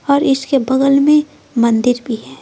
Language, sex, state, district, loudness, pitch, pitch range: Hindi, female, Bihar, Patna, -14 LUFS, 270 Hz, 235-280 Hz